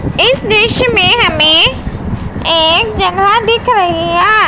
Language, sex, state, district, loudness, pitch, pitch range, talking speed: Hindi, female, Punjab, Pathankot, -9 LUFS, 385 Hz, 335-440 Hz, 95 wpm